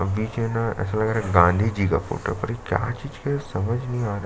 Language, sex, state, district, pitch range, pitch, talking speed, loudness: Hindi, male, Chhattisgarh, Sukma, 95-120 Hz, 110 Hz, 310 wpm, -24 LUFS